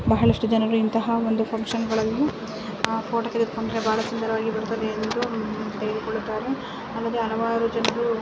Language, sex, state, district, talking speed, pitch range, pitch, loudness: Kannada, female, Karnataka, Mysore, 130 wpm, 220-230 Hz, 225 Hz, -25 LUFS